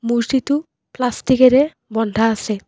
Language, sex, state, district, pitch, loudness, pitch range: Assamese, female, Assam, Kamrup Metropolitan, 245 Hz, -17 LUFS, 225-265 Hz